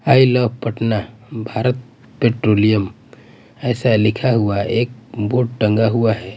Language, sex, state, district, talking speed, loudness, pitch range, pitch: Hindi, male, Bihar, Patna, 130 wpm, -17 LUFS, 110-125 Hz, 115 Hz